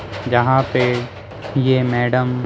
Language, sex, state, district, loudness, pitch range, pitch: Hindi, male, Chhattisgarh, Sukma, -18 LUFS, 120-125 Hz, 125 Hz